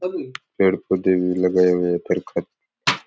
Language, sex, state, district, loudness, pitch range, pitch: Rajasthani, male, Rajasthan, Nagaur, -21 LUFS, 90-95 Hz, 90 Hz